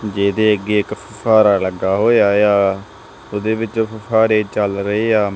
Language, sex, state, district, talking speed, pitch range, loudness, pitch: Punjabi, male, Punjab, Kapurthala, 145 wpm, 100-110 Hz, -16 LUFS, 105 Hz